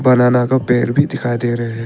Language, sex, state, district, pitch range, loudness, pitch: Hindi, male, Arunachal Pradesh, Papum Pare, 120-130 Hz, -15 LUFS, 125 Hz